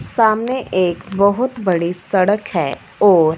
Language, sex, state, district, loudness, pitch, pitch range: Hindi, female, Punjab, Fazilka, -17 LUFS, 200 Hz, 180-220 Hz